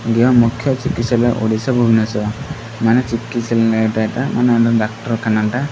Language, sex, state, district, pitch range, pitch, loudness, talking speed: Odia, male, Odisha, Khordha, 110-120 Hz, 115 Hz, -16 LUFS, 115 wpm